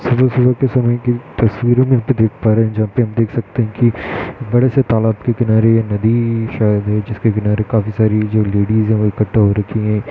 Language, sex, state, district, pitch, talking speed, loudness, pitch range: Hindi, male, Uttar Pradesh, Jyotiba Phule Nagar, 110 Hz, 220 wpm, -15 LUFS, 110-120 Hz